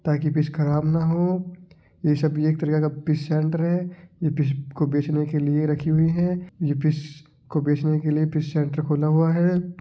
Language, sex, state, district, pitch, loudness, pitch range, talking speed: Marwari, male, Rajasthan, Nagaur, 155 Hz, -23 LUFS, 150-165 Hz, 215 wpm